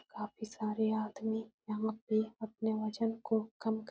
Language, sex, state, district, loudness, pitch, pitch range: Hindi, female, Uttar Pradesh, Etah, -37 LUFS, 220 Hz, 215-220 Hz